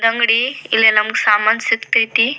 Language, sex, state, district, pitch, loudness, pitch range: Kannada, female, Karnataka, Belgaum, 225 Hz, -14 LUFS, 220-235 Hz